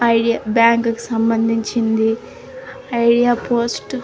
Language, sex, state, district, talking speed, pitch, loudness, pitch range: Telugu, female, Andhra Pradesh, Krishna, 105 wpm, 235 Hz, -17 LUFS, 225-240 Hz